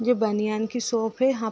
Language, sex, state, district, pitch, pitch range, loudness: Hindi, female, Bihar, Darbhanga, 225 Hz, 220-245 Hz, -25 LUFS